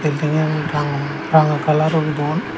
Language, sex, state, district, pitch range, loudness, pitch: Chakma, male, Tripura, Dhalai, 150-155 Hz, -18 LUFS, 155 Hz